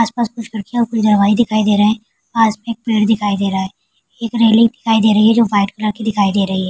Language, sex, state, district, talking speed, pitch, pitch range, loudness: Hindi, female, Bihar, Kishanganj, 260 wpm, 220 Hz, 205-230 Hz, -15 LUFS